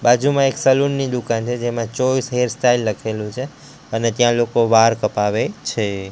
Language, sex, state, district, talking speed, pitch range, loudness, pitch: Gujarati, male, Gujarat, Gandhinagar, 165 wpm, 110-130 Hz, -18 LUFS, 120 Hz